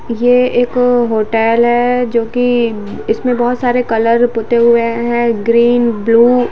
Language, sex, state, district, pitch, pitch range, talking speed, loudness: Hindi, female, Jharkhand, Sahebganj, 235 Hz, 230-245 Hz, 145 wpm, -12 LUFS